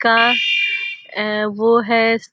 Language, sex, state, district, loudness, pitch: Hindi, female, Uttar Pradesh, Deoria, -16 LUFS, 230 Hz